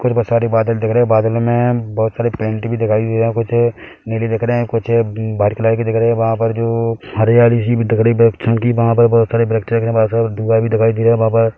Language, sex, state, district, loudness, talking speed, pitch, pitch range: Hindi, male, Chhattisgarh, Bilaspur, -15 LUFS, 295 wpm, 115 Hz, 110-115 Hz